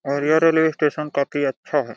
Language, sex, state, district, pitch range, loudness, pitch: Hindi, male, Jharkhand, Jamtara, 140-155 Hz, -20 LUFS, 145 Hz